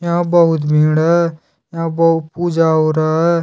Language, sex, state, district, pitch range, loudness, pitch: Hindi, male, Jharkhand, Deoghar, 155-170 Hz, -14 LUFS, 165 Hz